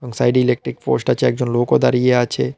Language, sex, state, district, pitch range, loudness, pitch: Bengali, male, Tripura, South Tripura, 120-125 Hz, -17 LUFS, 125 Hz